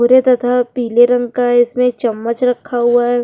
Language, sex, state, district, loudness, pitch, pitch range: Hindi, female, Uttarakhand, Tehri Garhwal, -14 LUFS, 245 Hz, 240-250 Hz